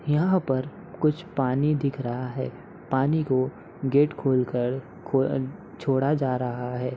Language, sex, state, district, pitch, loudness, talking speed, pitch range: Hindi, male, Uttar Pradesh, Hamirpur, 135 Hz, -26 LUFS, 140 wpm, 130-150 Hz